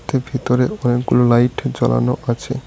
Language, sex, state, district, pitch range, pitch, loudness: Bengali, male, West Bengal, Cooch Behar, 120-130 Hz, 125 Hz, -17 LUFS